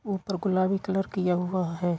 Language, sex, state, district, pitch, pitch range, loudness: Hindi, female, Chhattisgarh, Bastar, 185 Hz, 180-195 Hz, -27 LUFS